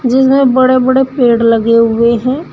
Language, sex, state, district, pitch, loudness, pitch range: Hindi, female, Uttar Pradesh, Shamli, 255 Hz, -10 LUFS, 230-265 Hz